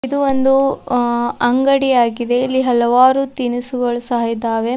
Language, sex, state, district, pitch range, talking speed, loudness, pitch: Kannada, female, Karnataka, Bidar, 240-265 Hz, 115 wpm, -16 LUFS, 245 Hz